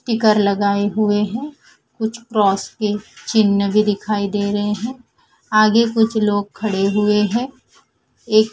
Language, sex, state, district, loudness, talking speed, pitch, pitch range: Hindi, female, Punjab, Fazilka, -18 LUFS, 140 wpm, 210 Hz, 205-220 Hz